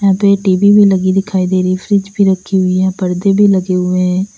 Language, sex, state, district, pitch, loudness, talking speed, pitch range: Hindi, female, Uttar Pradesh, Lalitpur, 190 Hz, -12 LUFS, 235 wpm, 185-200 Hz